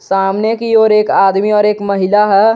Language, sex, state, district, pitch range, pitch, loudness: Hindi, male, Jharkhand, Garhwa, 195-215 Hz, 210 Hz, -12 LUFS